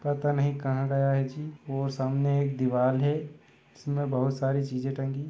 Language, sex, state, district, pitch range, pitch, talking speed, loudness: Hindi, male, Chhattisgarh, Raigarh, 135-145 Hz, 135 Hz, 180 wpm, -28 LUFS